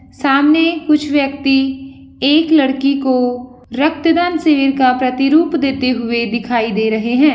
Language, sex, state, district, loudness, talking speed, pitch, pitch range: Hindi, female, Bihar, Begusarai, -14 LUFS, 130 wpm, 275 Hz, 250-300 Hz